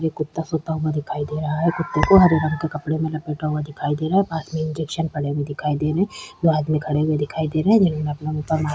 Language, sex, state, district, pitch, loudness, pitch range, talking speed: Hindi, female, Chhattisgarh, Sukma, 155 Hz, -21 LUFS, 150-160 Hz, 300 wpm